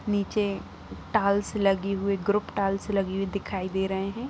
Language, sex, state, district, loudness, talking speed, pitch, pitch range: Hindi, female, Bihar, Saran, -27 LUFS, 165 wpm, 200 Hz, 195-205 Hz